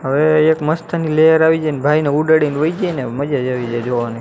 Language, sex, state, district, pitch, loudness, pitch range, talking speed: Gujarati, male, Gujarat, Gandhinagar, 155 Hz, -16 LUFS, 135-160 Hz, 200 wpm